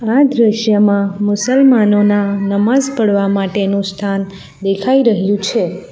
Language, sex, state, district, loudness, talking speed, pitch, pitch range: Gujarati, female, Gujarat, Valsad, -14 LUFS, 100 wpm, 205 Hz, 200-230 Hz